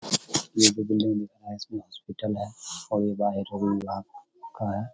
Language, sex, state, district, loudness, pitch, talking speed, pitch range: Hindi, male, Bihar, Samastipur, -27 LUFS, 105 Hz, 85 wpm, 100-110 Hz